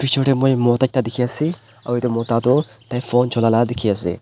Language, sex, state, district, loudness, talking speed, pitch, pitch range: Nagamese, male, Nagaland, Dimapur, -19 LUFS, 240 wpm, 120 Hz, 115-130 Hz